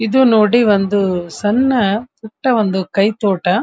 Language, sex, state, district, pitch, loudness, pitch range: Kannada, female, Karnataka, Dharwad, 210 Hz, -15 LUFS, 195-240 Hz